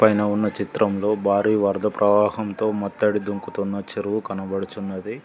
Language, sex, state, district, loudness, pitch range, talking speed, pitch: Telugu, male, Telangana, Mahabubabad, -22 LUFS, 100-105 Hz, 115 wpm, 105 Hz